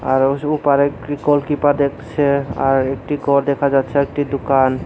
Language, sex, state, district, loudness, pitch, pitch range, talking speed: Bengali, male, Tripura, Unakoti, -17 LUFS, 140 Hz, 135-145 Hz, 160 wpm